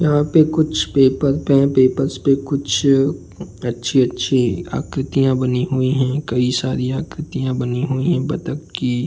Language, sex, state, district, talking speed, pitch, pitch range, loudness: Hindi, male, Uttar Pradesh, Jalaun, 145 wpm, 135 Hz, 125-140 Hz, -18 LUFS